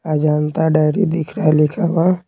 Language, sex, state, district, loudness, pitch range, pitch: Hindi, male, Bihar, Patna, -16 LUFS, 150-175 Hz, 160 Hz